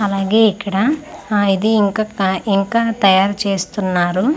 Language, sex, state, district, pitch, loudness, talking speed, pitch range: Telugu, female, Andhra Pradesh, Manyam, 200 Hz, -16 LUFS, 125 wpm, 195-220 Hz